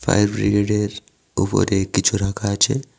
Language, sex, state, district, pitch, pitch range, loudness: Bengali, male, Tripura, West Tripura, 105 Hz, 100-105 Hz, -20 LUFS